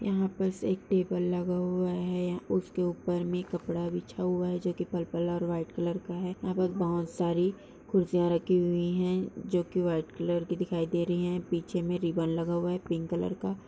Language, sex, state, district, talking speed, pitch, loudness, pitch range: Hindi, female, Bihar, Jamui, 215 wpm, 180 Hz, -31 LUFS, 170-180 Hz